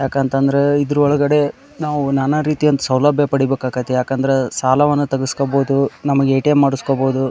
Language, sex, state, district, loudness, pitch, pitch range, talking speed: Kannada, male, Karnataka, Dharwad, -16 LUFS, 140 Hz, 135-145 Hz, 125 wpm